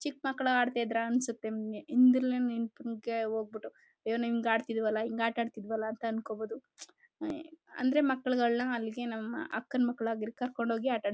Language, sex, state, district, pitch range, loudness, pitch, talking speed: Kannada, female, Karnataka, Chamarajanagar, 225-255 Hz, -32 LUFS, 235 Hz, 135 wpm